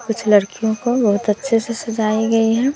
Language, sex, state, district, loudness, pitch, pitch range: Hindi, female, Bihar, West Champaran, -17 LUFS, 225 Hz, 215-230 Hz